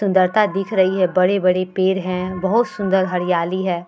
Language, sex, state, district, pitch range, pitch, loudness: Hindi, female, Bihar, Vaishali, 180-195 Hz, 185 Hz, -18 LUFS